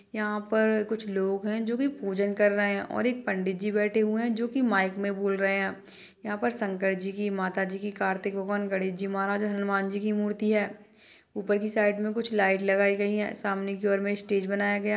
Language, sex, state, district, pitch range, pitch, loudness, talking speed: Hindi, female, Chhattisgarh, Bastar, 195-210 Hz, 205 Hz, -28 LUFS, 230 wpm